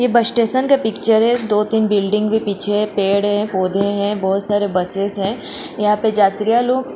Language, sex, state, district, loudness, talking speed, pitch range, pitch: Hindi, female, Goa, North and South Goa, -16 LUFS, 205 wpm, 200-225 Hz, 210 Hz